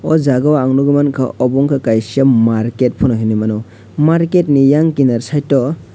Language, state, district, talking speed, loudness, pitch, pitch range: Kokborok, Tripura, West Tripura, 180 wpm, -13 LUFS, 135 Hz, 115-145 Hz